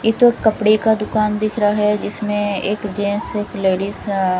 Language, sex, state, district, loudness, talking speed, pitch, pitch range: Hindi, female, Punjab, Fazilka, -18 LUFS, 175 wpm, 210 Hz, 200-215 Hz